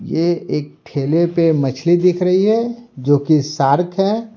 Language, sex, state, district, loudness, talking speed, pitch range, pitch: Hindi, male, Bihar, Patna, -16 LUFS, 150 wpm, 145-190 Hz, 170 Hz